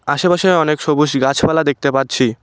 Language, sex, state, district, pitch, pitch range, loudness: Bengali, male, West Bengal, Cooch Behar, 150 Hz, 135-160 Hz, -15 LUFS